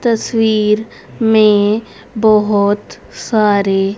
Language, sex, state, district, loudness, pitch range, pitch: Hindi, female, Haryana, Rohtak, -13 LUFS, 205-220 Hz, 215 Hz